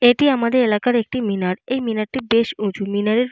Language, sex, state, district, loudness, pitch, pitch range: Bengali, female, Jharkhand, Jamtara, -19 LUFS, 230 Hz, 210-250 Hz